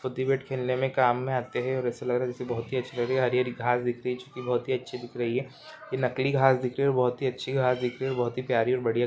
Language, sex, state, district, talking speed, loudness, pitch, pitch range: Hindi, male, Andhra Pradesh, Guntur, 325 wpm, -28 LUFS, 125 Hz, 125-130 Hz